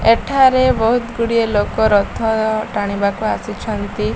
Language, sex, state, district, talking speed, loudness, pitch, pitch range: Odia, female, Odisha, Malkangiri, 115 wpm, -16 LUFS, 220 Hz, 210-230 Hz